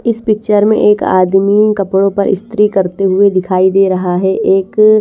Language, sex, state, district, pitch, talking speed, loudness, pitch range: Hindi, female, Haryana, Rohtak, 195 Hz, 180 wpm, -11 LUFS, 190-210 Hz